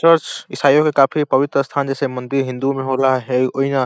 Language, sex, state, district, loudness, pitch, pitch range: Bhojpuri, male, Uttar Pradesh, Deoria, -17 LUFS, 135 Hz, 130-140 Hz